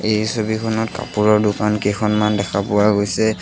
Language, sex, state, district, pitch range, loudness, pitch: Assamese, male, Assam, Sonitpur, 105-110 Hz, -18 LUFS, 105 Hz